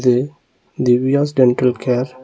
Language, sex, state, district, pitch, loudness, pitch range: Tamil, male, Tamil Nadu, Nilgiris, 125 Hz, -16 LUFS, 125-135 Hz